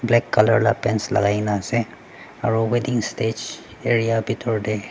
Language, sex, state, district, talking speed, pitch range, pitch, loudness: Nagamese, male, Nagaland, Dimapur, 170 wpm, 110-120 Hz, 115 Hz, -21 LUFS